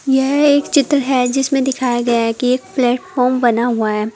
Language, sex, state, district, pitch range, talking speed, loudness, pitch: Hindi, female, Uttar Pradesh, Saharanpur, 240-270 Hz, 200 wpm, -15 LUFS, 255 Hz